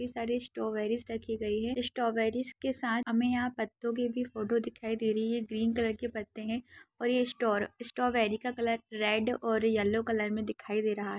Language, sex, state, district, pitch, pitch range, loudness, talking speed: Hindi, female, Bihar, Saharsa, 230 Hz, 220-240 Hz, -32 LUFS, 210 wpm